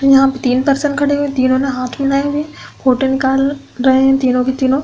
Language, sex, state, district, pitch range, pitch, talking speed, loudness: Hindi, female, Uttar Pradesh, Hamirpur, 260-280 Hz, 270 Hz, 225 wpm, -14 LUFS